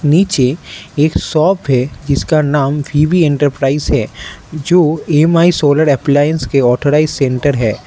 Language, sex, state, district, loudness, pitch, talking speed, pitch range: Hindi, male, Arunachal Pradesh, Lower Dibang Valley, -13 LUFS, 145 Hz, 130 wpm, 140-155 Hz